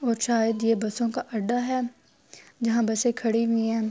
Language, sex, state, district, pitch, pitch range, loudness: Urdu, female, Andhra Pradesh, Anantapur, 230 Hz, 225-240 Hz, -25 LUFS